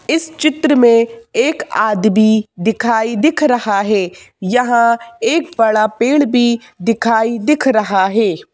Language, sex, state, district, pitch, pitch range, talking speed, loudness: Hindi, female, Madhya Pradesh, Bhopal, 230 Hz, 215-280 Hz, 125 wpm, -14 LUFS